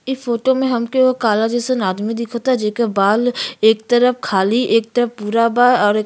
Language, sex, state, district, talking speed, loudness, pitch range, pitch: Bhojpuri, female, Uttar Pradesh, Gorakhpur, 200 wpm, -16 LUFS, 215-250 Hz, 235 Hz